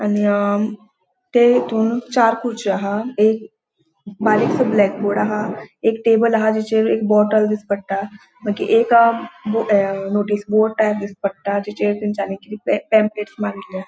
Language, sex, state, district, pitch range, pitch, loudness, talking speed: Konkani, female, Goa, North and South Goa, 205-225 Hz, 215 Hz, -18 LUFS, 135 wpm